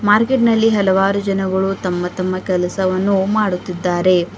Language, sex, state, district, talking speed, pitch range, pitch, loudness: Kannada, female, Karnataka, Bidar, 110 wpm, 180-200 Hz, 190 Hz, -17 LUFS